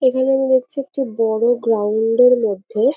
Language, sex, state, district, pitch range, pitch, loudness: Bengali, female, West Bengal, North 24 Parganas, 225-265 Hz, 245 Hz, -17 LUFS